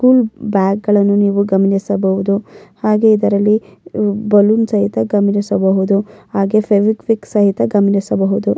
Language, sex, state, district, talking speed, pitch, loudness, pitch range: Kannada, female, Karnataka, Mysore, 105 wpm, 205 Hz, -14 LUFS, 195-210 Hz